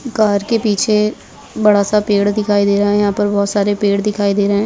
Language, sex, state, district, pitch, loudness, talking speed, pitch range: Hindi, female, Bihar, Jamui, 205 Hz, -15 LUFS, 245 wpm, 200-210 Hz